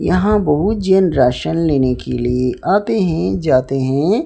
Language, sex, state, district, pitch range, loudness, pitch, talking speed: Hindi, male, Odisha, Sambalpur, 130-195 Hz, -16 LUFS, 165 Hz, 155 wpm